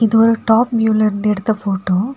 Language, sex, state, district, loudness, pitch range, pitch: Tamil, female, Tamil Nadu, Kanyakumari, -15 LUFS, 205-225 Hz, 220 Hz